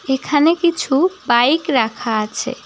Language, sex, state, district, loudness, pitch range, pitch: Bengali, female, West Bengal, Cooch Behar, -16 LUFS, 240-330 Hz, 285 Hz